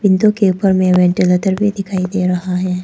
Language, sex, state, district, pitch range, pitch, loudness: Hindi, female, Arunachal Pradesh, Papum Pare, 180-195 Hz, 185 Hz, -14 LUFS